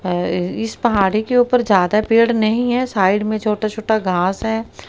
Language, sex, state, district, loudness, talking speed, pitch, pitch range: Hindi, female, Haryana, Rohtak, -17 LUFS, 185 wpm, 215 Hz, 195-230 Hz